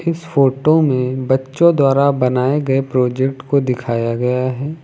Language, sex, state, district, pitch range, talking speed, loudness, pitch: Hindi, male, Uttar Pradesh, Lucknow, 125-145 Hz, 150 wpm, -16 LUFS, 135 Hz